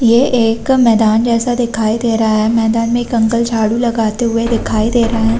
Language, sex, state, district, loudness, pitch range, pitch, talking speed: Hindi, female, Chhattisgarh, Raigarh, -13 LUFS, 225-235 Hz, 230 Hz, 210 wpm